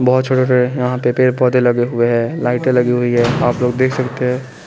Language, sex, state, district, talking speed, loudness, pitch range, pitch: Hindi, male, Chandigarh, Chandigarh, 245 wpm, -15 LUFS, 120-130 Hz, 125 Hz